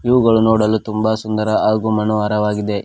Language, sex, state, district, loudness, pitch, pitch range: Kannada, male, Karnataka, Koppal, -16 LUFS, 110 Hz, 105-110 Hz